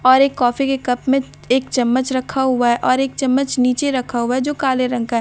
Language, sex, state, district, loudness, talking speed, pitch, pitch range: Hindi, female, Bihar, Katihar, -17 LUFS, 300 wpm, 255 Hz, 250-270 Hz